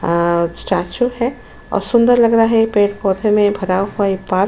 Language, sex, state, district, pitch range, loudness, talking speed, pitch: Hindi, female, Goa, North and South Goa, 190-230 Hz, -16 LUFS, 200 wpm, 205 Hz